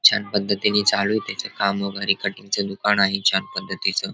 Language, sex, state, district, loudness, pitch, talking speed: Marathi, male, Maharashtra, Dhule, -21 LUFS, 100 Hz, 190 wpm